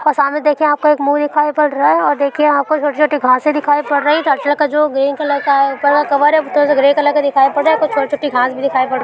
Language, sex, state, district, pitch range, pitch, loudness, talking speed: Hindi, female, Uttar Pradesh, Budaun, 280-300 Hz, 290 Hz, -13 LUFS, 280 wpm